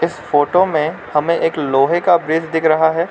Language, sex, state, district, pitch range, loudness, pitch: Hindi, male, Arunachal Pradesh, Lower Dibang Valley, 150-170 Hz, -16 LUFS, 160 Hz